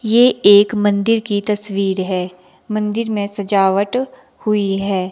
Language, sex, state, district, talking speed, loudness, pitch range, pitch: Hindi, female, Himachal Pradesh, Shimla, 130 wpm, -16 LUFS, 195-220 Hz, 205 Hz